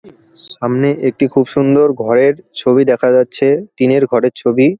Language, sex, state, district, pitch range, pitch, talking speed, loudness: Bengali, male, West Bengal, Jalpaiguri, 130-145 Hz, 135 Hz, 150 wpm, -13 LUFS